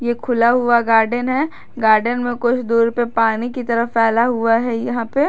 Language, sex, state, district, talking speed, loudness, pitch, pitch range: Hindi, female, Jharkhand, Garhwa, 205 wpm, -17 LUFS, 235 Hz, 230-245 Hz